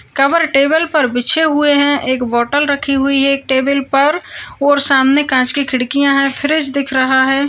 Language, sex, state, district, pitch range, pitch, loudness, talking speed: Hindi, female, Uttarakhand, Uttarkashi, 265-285 Hz, 275 Hz, -13 LUFS, 190 wpm